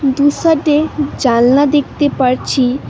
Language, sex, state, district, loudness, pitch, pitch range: Bengali, female, West Bengal, Alipurduar, -13 LUFS, 285 Hz, 255-295 Hz